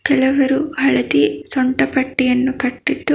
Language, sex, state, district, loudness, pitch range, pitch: Kannada, female, Karnataka, Bangalore, -17 LUFS, 250-270 Hz, 265 Hz